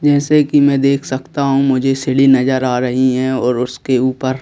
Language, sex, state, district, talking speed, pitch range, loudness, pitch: Hindi, male, Madhya Pradesh, Bhopal, 205 wpm, 130-140 Hz, -14 LUFS, 130 Hz